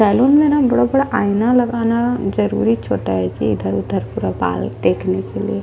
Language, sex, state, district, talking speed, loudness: Hindi, female, Chhattisgarh, Jashpur, 200 wpm, -17 LUFS